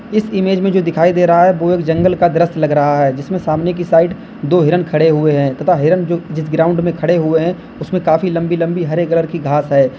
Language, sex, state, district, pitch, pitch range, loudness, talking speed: Hindi, male, Uttar Pradesh, Lalitpur, 170 Hz, 160-180 Hz, -14 LUFS, 260 wpm